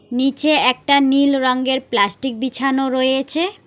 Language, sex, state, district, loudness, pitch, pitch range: Bengali, female, West Bengal, Alipurduar, -17 LUFS, 265 Hz, 255-280 Hz